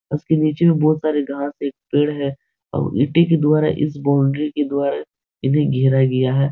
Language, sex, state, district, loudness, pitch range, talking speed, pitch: Hindi, male, Bihar, Supaul, -18 LUFS, 140-155 Hz, 200 wpm, 145 Hz